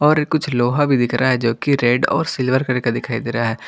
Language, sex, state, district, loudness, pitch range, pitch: Hindi, male, Jharkhand, Garhwa, -18 LUFS, 120-140 Hz, 125 Hz